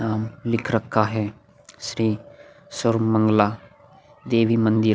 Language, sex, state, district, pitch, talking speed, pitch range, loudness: Hindi, male, Chhattisgarh, Korba, 115 Hz, 110 wpm, 110-115 Hz, -22 LUFS